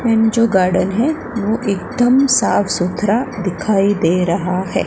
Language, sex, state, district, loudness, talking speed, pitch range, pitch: Hindi, female, Gujarat, Gandhinagar, -16 LUFS, 135 wpm, 185-230 Hz, 205 Hz